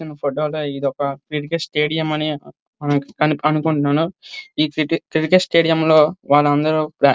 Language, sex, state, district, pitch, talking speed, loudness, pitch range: Telugu, male, Andhra Pradesh, Srikakulam, 155 Hz, 85 wpm, -18 LUFS, 145-160 Hz